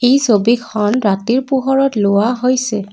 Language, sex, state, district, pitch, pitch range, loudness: Assamese, female, Assam, Kamrup Metropolitan, 235 Hz, 210-255 Hz, -14 LUFS